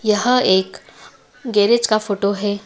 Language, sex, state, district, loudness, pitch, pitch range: Hindi, female, Madhya Pradesh, Dhar, -17 LUFS, 210 Hz, 200-235 Hz